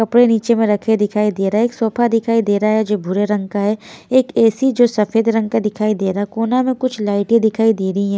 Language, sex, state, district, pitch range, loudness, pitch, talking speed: Hindi, female, Haryana, Jhajjar, 205-230 Hz, -16 LUFS, 220 Hz, 270 wpm